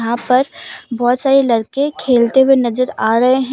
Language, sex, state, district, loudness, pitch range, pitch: Hindi, female, Jharkhand, Deoghar, -14 LUFS, 235-270 Hz, 255 Hz